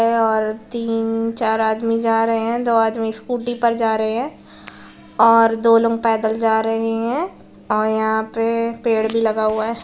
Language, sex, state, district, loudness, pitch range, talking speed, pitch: Hindi, female, Bihar, Gopalganj, -18 LUFS, 220-230 Hz, 165 wpm, 225 Hz